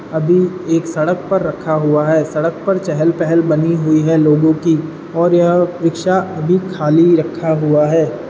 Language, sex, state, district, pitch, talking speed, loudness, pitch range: Hindi, male, Uttar Pradesh, Ghazipur, 165 Hz, 175 wpm, -14 LUFS, 155-175 Hz